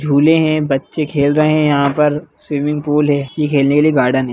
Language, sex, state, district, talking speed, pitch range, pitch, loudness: Hindi, male, Bihar, Jahanabad, 235 wpm, 140-155 Hz, 150 Hz, -14 LUFS